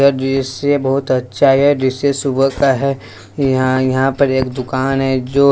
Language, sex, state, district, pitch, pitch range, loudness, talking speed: Hindi, male, Bihar, West Champaran, 135 Hz, 130-140 Hz, -15 LUFS, 175 wpm